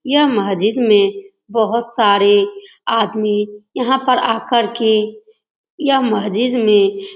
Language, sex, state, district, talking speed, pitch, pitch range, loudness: Hindi, female, Uttar Pradesh, Etah, 125 wpm, 215 Hz, 205-235 Hz, -15 LUFS